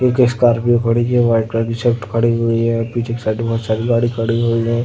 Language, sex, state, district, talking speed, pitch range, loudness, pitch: Hindi, male, Uttar Pradesh, Deoria, 250 wpm, 115-120 Hz, -16 LUFS, 115 Hz